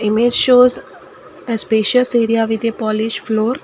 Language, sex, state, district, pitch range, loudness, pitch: English, female, Karnataka, Bangalore, 220-240 Hz, -15 LUFS, 225 Hz